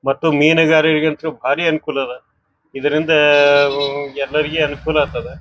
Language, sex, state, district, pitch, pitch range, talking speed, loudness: Kannada, male, Karnataka, Bijapur, 150 Hz, 140-155 Hz, 110 wpm, -15 LUFS